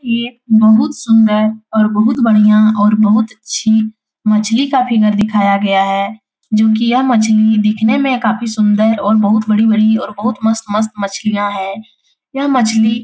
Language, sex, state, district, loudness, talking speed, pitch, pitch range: Hindi, female, Bihar, Jahanabad, -13 LUFS, 150 wpm, 220 Hz, 210-225 Hz